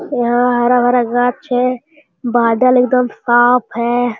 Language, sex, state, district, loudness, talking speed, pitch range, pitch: Hindi, male, Bihar, Jamui, -14 LUFS, 130 wpm, 240-250 Hz, 245 Hz